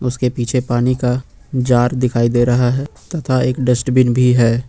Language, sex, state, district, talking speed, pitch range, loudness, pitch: Hindi, male, Jharkhand, Ranchi, 180 wpm, 120-130 Hz, -16 LUFS, 125 Hz